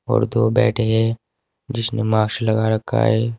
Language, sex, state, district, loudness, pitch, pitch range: Hindi, male, Uttar Pradesh, Saharanpur, -19 LUFS, 115 Hz, 110-115 Hz